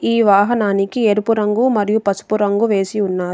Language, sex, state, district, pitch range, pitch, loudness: Telugu, female, Telangana, Adilabad, 200-225 Hz, 210 Hz, -16 LUFS